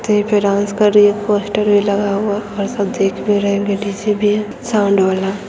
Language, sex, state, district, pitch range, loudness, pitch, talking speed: Hindi, female, Bihar, Begusarai, 200-210 Hz, -15 LUFS, 205 Hz, 205 wpm